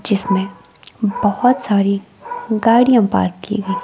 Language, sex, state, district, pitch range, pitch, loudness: Hindi, female, Himachal Pradesh, Shimla, 195-230 Hz, 205 Hz, -16 LUFS